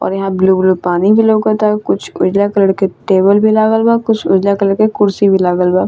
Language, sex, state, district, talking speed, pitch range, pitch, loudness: Bhojpuri, female, Bihar, Saran, 235 wpm, 190-215 Hz, 200 Hz, -12 LUFS